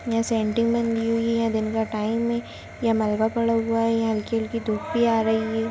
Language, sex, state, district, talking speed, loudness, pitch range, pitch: Hindi, female, Bihar, Jahanabad, 230 wpm, -23 LUFS, 220-230 Hz, 225 Hz